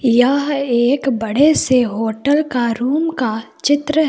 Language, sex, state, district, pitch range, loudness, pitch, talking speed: Hindi, female, Jharkhand, Palamu, 240-290 Hz, -16 LUFS, 260 Hz, 130 wpm